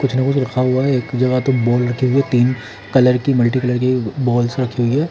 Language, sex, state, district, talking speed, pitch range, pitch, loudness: Hindi, male, Haryana, Charkhi Dadri, 225 wpm, 120-130 Hz, 125 Hz, -16 LUFS